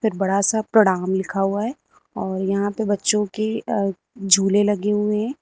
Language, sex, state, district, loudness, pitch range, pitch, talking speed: Hindi, female, Uttar Pradesh, Lucknow, -20 LUFS, 195-215 Hz, 205 Hz, 175 wpm